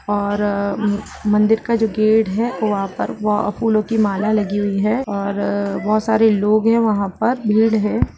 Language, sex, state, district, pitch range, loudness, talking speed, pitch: Hindi, female, Uttar Pradesh, Budaun, 205-220 Hz, -18 LUFS, 175 wpm, 210 Hz